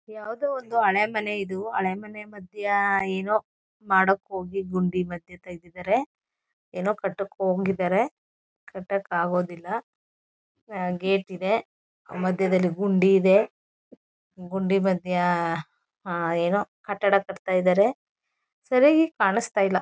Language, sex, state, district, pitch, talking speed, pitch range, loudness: Kannada, female, Karnataka, Mysore, 195 Hz, 105 wpm, 185-210 Hz, -25 LUFS